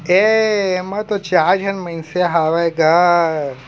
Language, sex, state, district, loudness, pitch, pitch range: Chhattisgarhi, male, Chhattisgarh, Raigarh, -16 LUFS, 175 Hz, 165-195 Hz